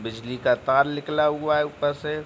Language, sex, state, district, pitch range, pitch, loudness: Hindi, male, Bihar, Begusarai, 140-150 Hz, 150 Hz, -23 LUFS